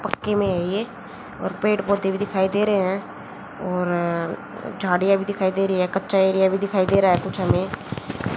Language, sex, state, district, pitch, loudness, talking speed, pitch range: Hindi, female, Haryana, Jhajjar, 195 Hz, -22 LUFS, 195 wpm, 185-200 Hz